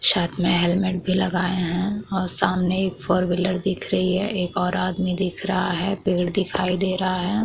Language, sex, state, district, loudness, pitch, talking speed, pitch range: Hindi, female, Bihar, Vaishali, -22 LUFS, 185 Hz, 200 wpm, 180-190 Hz